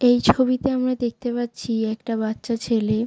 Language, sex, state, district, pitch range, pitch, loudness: Bengali, female, West Bengal, Jalpaiguri, 225-245 Hz, 235 Hz, -22 LUFS